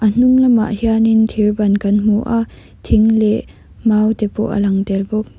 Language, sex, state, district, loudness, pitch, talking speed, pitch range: Mizo, female, Mizoram, Aizawl, -15 LUFS, 215 Hz, 200 wpm, 210-225 Hz